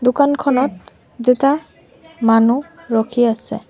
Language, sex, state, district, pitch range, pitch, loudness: Assamese, female, Assam, Sonitpur, 225-280 Hz, 250 Hz, -17 LUFS